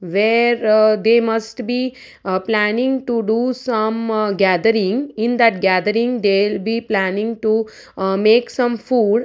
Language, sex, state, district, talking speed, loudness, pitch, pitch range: English, female, Gujarat, Valsad, 150 wpm, -17 LUFS, 225 Hz, 210-235 Hz